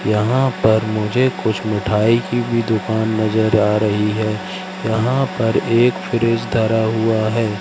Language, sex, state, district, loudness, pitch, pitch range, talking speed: Hindi, male, Madhya Pradesh, Katni, -17 LUFS, 110 Hz, 110-120 Hz, 150 wpm